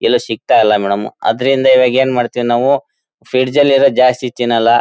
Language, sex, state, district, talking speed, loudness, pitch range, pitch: Kannada, male, Karnataka, Mysore, 175 wpm, -13 LUFS, 120-135 Hz, 125 Hz